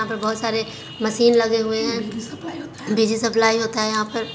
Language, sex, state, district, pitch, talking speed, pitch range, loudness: Hindi, female, Bihar, Jahanabad, 225 Hz, 190 wpm, 220-230 Hz, -20 LUFS